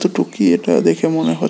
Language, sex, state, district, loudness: Bengali, male, Tripura, West Tripura, -16 LUFS